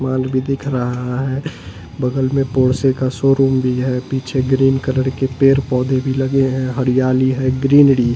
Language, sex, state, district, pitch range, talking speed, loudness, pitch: Hindi, male, Delhi, New Delhi, 130-135 Hz, 185 wpm, -16 LUFS, 130 Hz